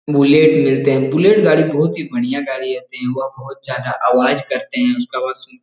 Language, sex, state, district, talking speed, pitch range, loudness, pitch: Hindi, male, Bihar, Jahanabad, 225 wpm, 135-210 Hz, -16 LUFS, 145 Hz